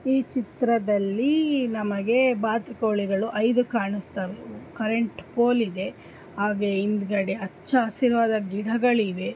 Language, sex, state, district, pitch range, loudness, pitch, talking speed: Kannada, female, Karnataka, Dharwad, 200-240 Hz, -24 LUFS, 220 Hz, 90 wpm